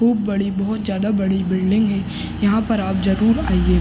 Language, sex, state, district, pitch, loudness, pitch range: Hindi, male, Uttar Pradesh, Gorakhpur, 200 Hz, -19 LUFS, 195-215 Hz